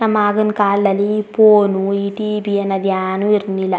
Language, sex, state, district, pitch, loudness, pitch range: Kannada, female, Karnataka, Chamarajanagar, 205 Hz, -16 LUFS, 195-210 Hz